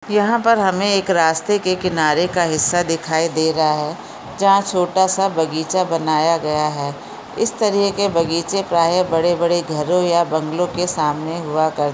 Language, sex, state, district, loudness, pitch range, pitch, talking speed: Hindi, female, Jharkhand, Jamtara, -18 LUFS, 160-190 Hz, 170 Hz, 165 wpm